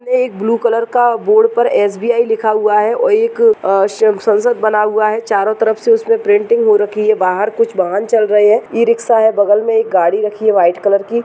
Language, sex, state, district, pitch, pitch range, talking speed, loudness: Hindi, female, Uttar Pradesh, Muzaffarnagar, 220 Hz, 210-235 Hz, 240 wpm, -13 LUFS